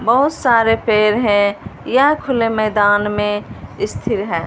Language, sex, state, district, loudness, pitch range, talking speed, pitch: Hindi, female, Punjab, Fazilka, -16 LUFS, 205-240 Hz, 135 wpm, 215 Hz